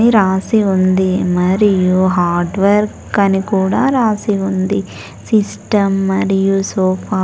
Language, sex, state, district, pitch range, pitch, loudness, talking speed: Telugu, female, Andhra Pradesh, Sri Satya Sai, 185-205 Hz, 195 Hz, -14 LUFS, 110 wpm